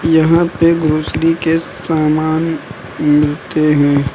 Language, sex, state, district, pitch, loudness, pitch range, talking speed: Hindi, male, Uttar Pradesh, Lucknow, 160 Hz, -14 LUFS, 150-165 Hz, 100 wpm